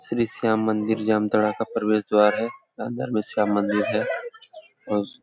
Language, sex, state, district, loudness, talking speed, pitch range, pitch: Hindi, male, Jharkhand, Jamtara, -23 LUFS, 170 wpm, 105-115 Hz, 110 Hz